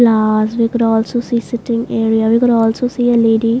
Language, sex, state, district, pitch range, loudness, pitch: English, female, Maharashtra, Mumbai Suburban, 225-240 Hz, -14 LUFS, 230 Hz